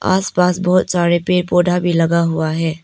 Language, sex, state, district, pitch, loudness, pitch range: Hindi, female, Arunachal Pradesh, Papum Pare, 175 Hz, -16 LUFS, 165-180 Hz